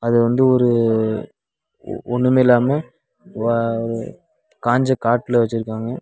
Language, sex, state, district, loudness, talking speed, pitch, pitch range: Tamil, male, Tamil Nadu, Nilgiris, -18 LUFS, 80 wpm, 120 Hz, 115-125 Hz